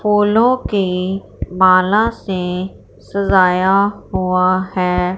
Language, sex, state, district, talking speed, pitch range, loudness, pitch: Hindi, female, Punjab, Fazilka, 80 wpm, 185-200 Hz, -15 LUFS, 190 Hz